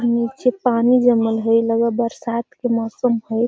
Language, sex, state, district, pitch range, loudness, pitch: Magahi, female, Bihar, Gaya, 230-245 Hz, -18 LUFS, 235 Hz